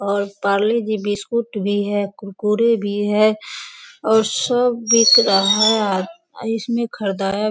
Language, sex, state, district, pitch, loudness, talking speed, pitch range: Hindi, female, Bihar, Sitamarhi, 210 Hz, -18 LUFS, 135 wpm, 200-230 Hz